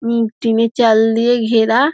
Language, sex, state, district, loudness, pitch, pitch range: Bengali, female, West Bengal, Dakshin Dinajpur, -14 LUFS, 230 Hz, 225-235 Hz